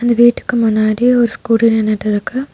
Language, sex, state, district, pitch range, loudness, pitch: Tamil, female, Tamil Nadu, Nilgiris, 215-240 Hz, -14 LUFS, 230 Hz